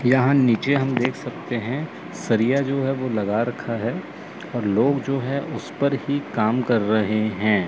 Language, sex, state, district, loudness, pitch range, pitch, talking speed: Hindi, male, Chandigarh, Chandigarh, -22 LUFS, 110-135 Hz, 130 Hz, 190 wpm